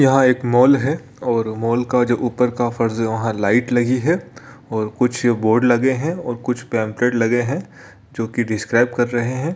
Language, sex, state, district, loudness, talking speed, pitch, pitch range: Hindi, male, Bihar, Araria, -19 LUFS, 200 wpm, 120 Hz, 115-130 Hz